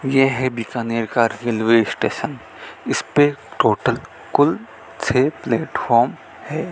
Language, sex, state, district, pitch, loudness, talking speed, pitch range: Hindi, male, Rajasthan, Bikaner, 120 Hz, -19 LUFS, 105 wpm, 115-135 Hz